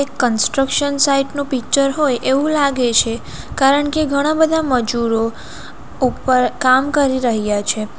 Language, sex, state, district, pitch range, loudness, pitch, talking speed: Gujarati, female, Gujarat, Valsad, 240-285 Hz, -16 LUFS, 265 Hz, 135 wpm